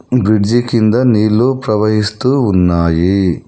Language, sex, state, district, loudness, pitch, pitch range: Telugu, male, Telangana, Hyderabad, -12 LUFS, 110 Hz, 95-120 Hz